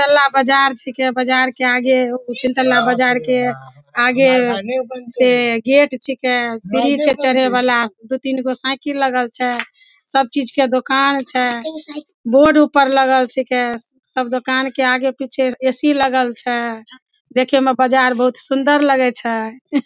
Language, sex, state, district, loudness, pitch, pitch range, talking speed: Maithili, female, Bihar, Samastipur, -16 LUFS, 260 Hz, 250-270 Hz, 140 wpm